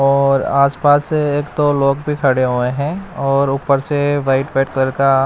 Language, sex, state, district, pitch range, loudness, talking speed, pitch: Hindi, male, Bihar, West Champaran, 135-145 Hz, -16 LUFS, 195 wpm, 140 Hz